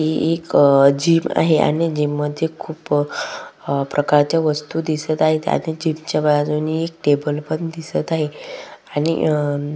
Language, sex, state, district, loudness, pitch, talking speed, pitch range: Marathi, female, Maharashtra, Solapur, -19 LUFS, 155 Hz, 155 wpm, 150-160 Hz